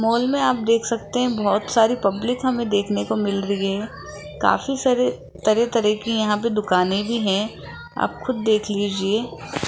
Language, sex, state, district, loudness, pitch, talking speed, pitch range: Hindi, female, Rajasthan, Jaipur, -21 LUFS, 215 Hz, 180 wpm, 200-235 Hz